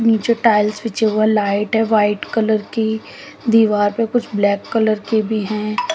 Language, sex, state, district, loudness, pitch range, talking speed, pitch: Hindi, female, Haryana, Jhajjar, -17 LUFS, 210-225 Hz, 180 wpm, 220 Hz